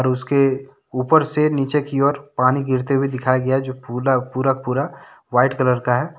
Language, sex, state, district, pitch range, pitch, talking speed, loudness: Hindi, male, Jharkhand, Deoghar, 130-140 Hz, 135 Hz, 195 wpm, -19 LUFS